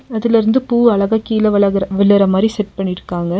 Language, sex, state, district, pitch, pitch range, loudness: Tamil, female, Tamil Nadu, Nilgiris, 205 Hz, 195-220 Hz, -14 LUFS